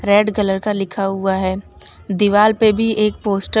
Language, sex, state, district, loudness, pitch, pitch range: Hindi, female, Gujarat, Valsad, -17 LUFS, 205 Hz, 195-215 Hz